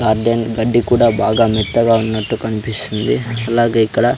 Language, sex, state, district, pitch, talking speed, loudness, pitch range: Telugu, male, Andhra Pradesh, Sri Satya Sai, 115 Hz, 130 wpm, -15 LUFS, 110-115 Hz